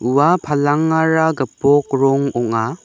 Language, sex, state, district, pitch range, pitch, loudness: Garo, male, Meghalaya, West Garo Hills, 135-160 Hz, 145 Hz, -16 LUFS